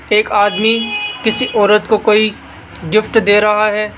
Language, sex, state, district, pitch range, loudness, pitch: Hindi, male, Rajasthan, Jaipur, 210-220 Hz, -13 LUFS, 210 Hz